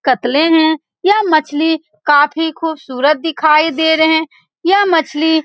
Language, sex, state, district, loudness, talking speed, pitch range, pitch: Hindi, female, Bihar, Saran, -13 LUFS, 145 wpm, 300-325 Hz, 315 Hz